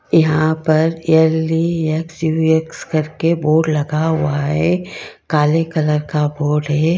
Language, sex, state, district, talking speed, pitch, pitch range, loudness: Hindi, female, Karnataka, Bangalore, 145 wpm, 160 Hz, 150-165 Hz, -16 LUFS